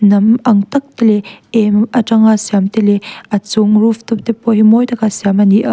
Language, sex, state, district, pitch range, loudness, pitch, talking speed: Mizo, female, Mizoram, Aizawl, 205-230 Hz, -12 LUFS, 220 Hz, 220 wpm